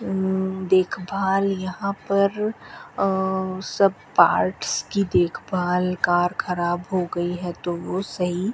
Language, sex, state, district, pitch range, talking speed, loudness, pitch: Hindi, female, Rajasthan, Bikaner, 180-195 Hz, 110 wpm, -23 LUFS, 185 Hz